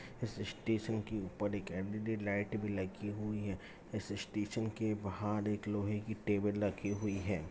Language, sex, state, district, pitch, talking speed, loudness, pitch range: Hindi, male, Bihar, Jamui, 105 Hz, 175 wpm, -39 LUFS, 100-105 Hz